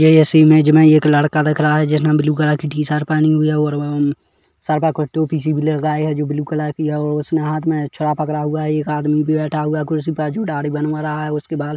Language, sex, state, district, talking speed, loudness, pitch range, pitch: Hindi, male, Chhattisgarh, Kabirdham, 280 wpm, -16 LUFS, 150-155 Hz, 150 Hz